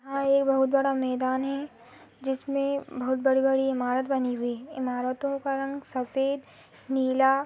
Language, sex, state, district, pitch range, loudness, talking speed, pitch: Hindi, female, Chhattisgarh, Rajnandgaon, 255-275 Hz, -27 LUFS, 145 wpm, 270 Hz